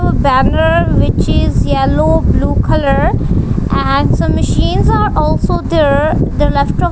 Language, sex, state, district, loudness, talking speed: English, female, Punjab, Kapurthala, -12 LUFS, 140 wpm